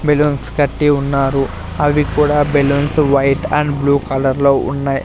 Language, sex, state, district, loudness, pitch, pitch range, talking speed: Telugu, male, Andhra Pradesh, Sri Satya Sai, -15 LUFS, 140 Hz, 135-150 Hz, 130 wpm